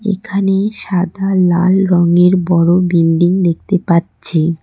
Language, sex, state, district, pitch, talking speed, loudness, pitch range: Bengali, female, West Bengal, Cooch Behar, 180 Hz, 105 wpm, -13 LUFS, 170-195 Hz